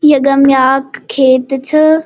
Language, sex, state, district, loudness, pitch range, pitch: Garhwali, female, Uttarakhand, Uttarkashi, -10 LUFS, 270-305 Hz, 275 Hz